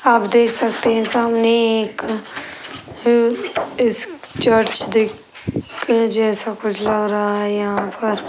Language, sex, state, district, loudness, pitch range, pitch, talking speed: Hindi, male, Bihar, Sitamarhi, -17 LUFS, 215-235 Hz, 225 Hz, 125 wpm